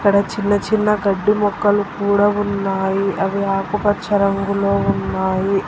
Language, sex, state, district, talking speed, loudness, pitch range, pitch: Telugu, female, Telangana, Hyderabad, 105 wpm, -18 LUFS, 195-205 Hz, 200 Hz